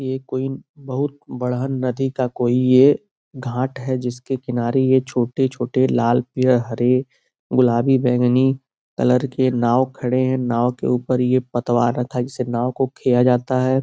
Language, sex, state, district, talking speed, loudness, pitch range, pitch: Hindi, male, Uttar Pradesh, Gorakhpur, 155 wpm, -19 LUFS, 125-130 Hz, 130 Hz